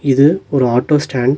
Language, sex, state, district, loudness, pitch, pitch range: Tamil, male, Tamil Nadu, Nilgiris, -14 LUFS, 140 Hz, 130-145 Hz